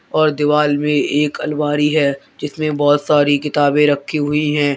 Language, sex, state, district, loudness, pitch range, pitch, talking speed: Hindi, male, Uttar Pradesh, Lalitpur, -16 LUFS, 145-150 Hz, 150 Hz, 165 wpm